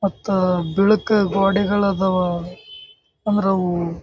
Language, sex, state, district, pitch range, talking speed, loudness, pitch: Kannada, male, Karnataka, Bijapur, 180-200 Hz, 90 wpm, -19 LUFS, 195 Hz